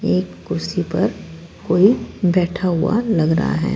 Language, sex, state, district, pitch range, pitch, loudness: Hindi, female, Punjab, Fazilka, 165-185 Hz, 175 Hz, -18 LUFS